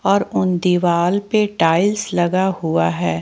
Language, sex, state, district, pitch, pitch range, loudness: Hindi, female, Jharkhand, Ranchi, 180 Hz, 165-200 Hz, -17 LUFS